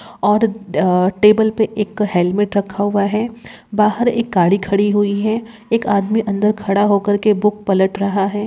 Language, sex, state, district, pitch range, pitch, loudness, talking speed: Hindi, female, Chhattisgarh, Bilaspur, 200-215 Hz, 205 Hz, -16 LUFS, 170 wpm